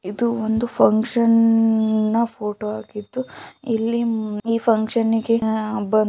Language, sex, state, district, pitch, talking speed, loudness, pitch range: Kannada, female, Karnataka, Shimoga, 225 Hz, 100 wpm, -20 LUFS, 215-230 Hz